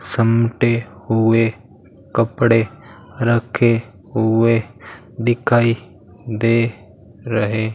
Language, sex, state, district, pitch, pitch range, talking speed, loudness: Hindi, male, Rajasthan, Bikaner, 115 Hz, 110-115 Hz, 70 wpm, -18 LUFS